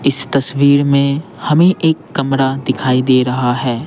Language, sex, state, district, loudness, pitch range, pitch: Hindi, male, Bihar, Patna, -14 LUFS, 130-140 Hz, 135 Hz